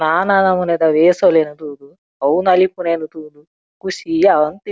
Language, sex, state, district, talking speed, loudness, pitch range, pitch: Tulu, female, Karnataka, Dakshina Kannada, 115 wpm, -15 LUFS, 155-190 Hz, 170 Hz